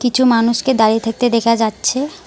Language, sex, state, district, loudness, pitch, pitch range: Bengali, female, West Bengal, Alipurduar, -15 LUFS, 230 Hz, 225-255 Hz